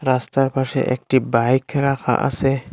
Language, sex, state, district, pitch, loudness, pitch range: Bengali, male, Assam, Hailakandi, 130 Hz, -19 LUFS, 125-135 Hz